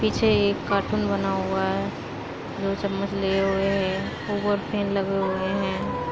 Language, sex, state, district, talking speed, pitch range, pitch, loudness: Hindi, female, Uttar Pradesh, Muzaffarnagar, 135 wpm, 195-200 Hz, 195 Hz, -25 LUFS